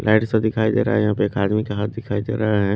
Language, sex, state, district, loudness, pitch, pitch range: Hindi, male, Haryana, Charkhi Dadri, -20 LUFS, 105 Hz, 105-110 Hz